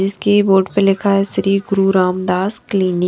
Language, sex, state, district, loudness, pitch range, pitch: Hindi, female, Punjab, Kapurthala, -15 LUFS, 190-200 Hz, 195 Hz